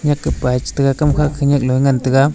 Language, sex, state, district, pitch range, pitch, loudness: Wancho, male, Arunachal Pradesh, Longding, 130-145 Hz, 140 Hz, -16 LUFS